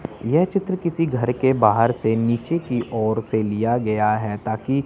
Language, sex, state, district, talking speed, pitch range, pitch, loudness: Hindi, male, Chandigarh, Chandigarh, 185 wpm, 110-130 Hz, 115 Hz, -21 LUFS